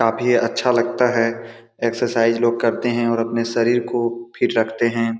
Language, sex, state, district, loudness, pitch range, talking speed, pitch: Hindi, male, Bihar, Saran, -19 LUFS, 115-120 Hz, 175 wpm, 115 Hz